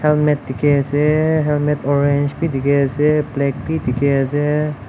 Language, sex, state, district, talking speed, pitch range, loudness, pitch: Nagamese, male, Nagaland, Dimapur, 145 wpm, 140-150 Hz, -17 LUFS, 145 Hz